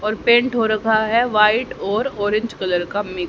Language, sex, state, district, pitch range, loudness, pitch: Hindi, female, Haryana, Jhajjar, 205-230 Hz, -18 LUFS, 215 Hz